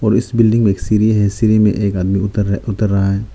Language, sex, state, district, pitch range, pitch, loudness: Hindi, male, Arunachal Pradesh, Lower Dibang Valley, 100-110 Hz, 105 Hz, -15 LUFS